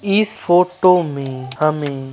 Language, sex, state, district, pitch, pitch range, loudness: Hindi, male, Bihar, Lakhisarai, 155 Hz, 135-180 Hz, -17 LUFS